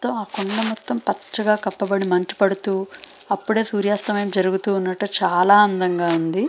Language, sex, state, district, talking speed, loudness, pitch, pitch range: Telugu, female, Andhra Pradesh, Srikakulam, 140 wpm, -20 LUFS, 200 Hz, 190-210 Hz